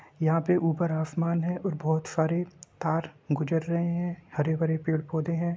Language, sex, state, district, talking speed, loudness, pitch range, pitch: Hindi, male, Bihar, Samastipur, 160 wpm, -28 LUFS, 160-170 Hz, 165 Hz